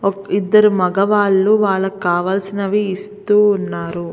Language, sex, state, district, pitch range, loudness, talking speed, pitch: Telugu, female, Andhra Pradesh, Visakhapatnam, 190-205 Hz, -16 LUFS, 85 wpm, 195 Hz